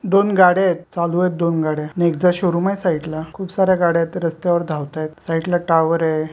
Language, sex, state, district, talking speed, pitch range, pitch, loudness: Marathi, male, Maharashtra, Sindhudurg, 210 wpm, 160-180 Hz, 170 Hz, -18 LUFS